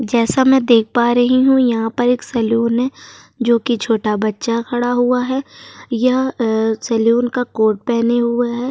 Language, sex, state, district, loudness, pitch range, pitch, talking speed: Hindi, female, Uttar Pradesh, Jyotiba Phule Nagar, -16 LUFS, 230-250 Hz, 240 Hz, 170 wpm